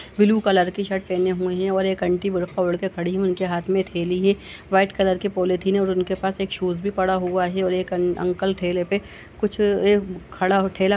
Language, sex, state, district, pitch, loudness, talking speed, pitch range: Hindi, female, Uttar Pradesh, Budaun, 190 Hz, -22 LUFS, 255 wpm, 180-195 Hz